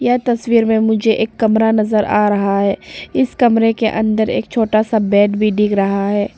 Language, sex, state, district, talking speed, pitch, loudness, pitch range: Hindi, female, Arunachal Pradesh, Papum Pare, 205 wpm, 220 Hz, -15 LUFS, 210-225 Hz